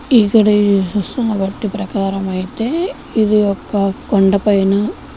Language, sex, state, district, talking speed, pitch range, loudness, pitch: Telugu, female, Telangana, Karimnagar, 105 wpm, 195-220 Hz, -15 LUFS, 205 Hz